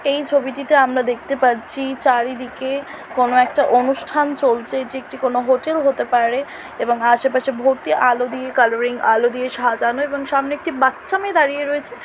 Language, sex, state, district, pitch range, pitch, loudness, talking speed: Bengali, female, West Bengal, Kolkata, 245-285 Hz, 265 Hz, -18 LUFS, 165 wpm